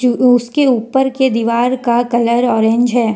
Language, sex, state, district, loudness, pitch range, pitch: Hindi, female, Jharkhand, Deoghar, -13 LUFS, 235-255 Hz, 245 Hz